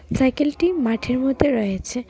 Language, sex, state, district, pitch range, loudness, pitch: Bengali, female, Tripura, West Tripura, 245-290 Hz, -21 LUFS, 260 Hz